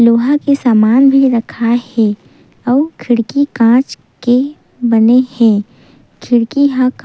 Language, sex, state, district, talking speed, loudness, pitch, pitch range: Chhattisgarhi, female, Chhattisgarh, Sukma, 135 wpm, -12 LUFS, 245 Hz, 230-265 Hz